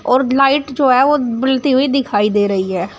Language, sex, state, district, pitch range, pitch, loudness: Hindi, female, Uttar Pradesh, Shamli, 205-275 Hz, 260 Hz, -14 LUFS